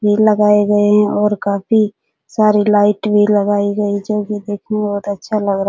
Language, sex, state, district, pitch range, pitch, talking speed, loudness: Hindi, female, Bihar, Supaul, 205-210 Hz, 210 Hz, 200 wpm, -15 LUFS